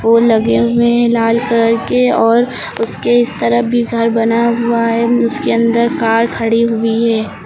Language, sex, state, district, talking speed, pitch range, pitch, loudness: Hindi, female, Uttar Pradesh, Lucknow, 175 wpm, 225-235 Hz, 230 Hz, -13 LUFS